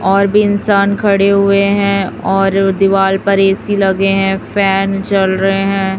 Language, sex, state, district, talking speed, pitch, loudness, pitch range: Hindi, female, Chhattisgarh, Raipur, 160 wpm, 195 Hz, -12 LUFS, 195-200 Hz